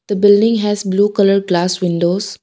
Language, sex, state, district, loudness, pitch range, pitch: English, female, Assam, Kamrup Metropolitan, -14 LUFS, 185-205 Hz, 200 Hz